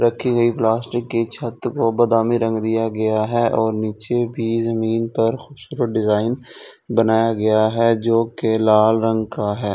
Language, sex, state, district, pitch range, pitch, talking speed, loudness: Hindi, male, Delhi, New Delhi, 110-120 Hz, 115 Hz, 165 wpm, -19 LUFS